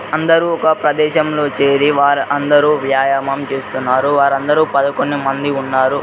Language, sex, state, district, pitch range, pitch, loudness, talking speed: Telugu, male, Telangana, Mahabubabad, 135-150 Hz, 140 Hz, -14 LUFS, 110 wpm